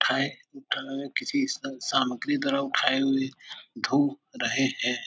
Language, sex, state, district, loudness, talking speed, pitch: Hindi, male, Uttar Pradesh, Etah, -27 LUFS, 120 wpm, 135 Hz